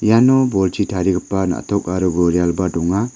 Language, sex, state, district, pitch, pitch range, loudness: Garo, male, Meghalaya, West Garo Hills, 95 Hz, 90-100 Hz, -17 LUFS